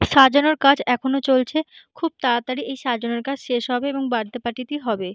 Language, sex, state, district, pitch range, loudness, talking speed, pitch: Bengali, female, West Bengal, Jhargram, 240-275 Hz, -21 LUFS, 175 wpm, 255 Hz